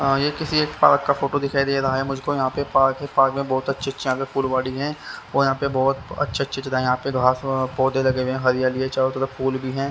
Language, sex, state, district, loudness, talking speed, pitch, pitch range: Hindi, male, Haryana, Rohtak, -21 LUFS, 270 wpm, 135 Hz, 130-140 Hz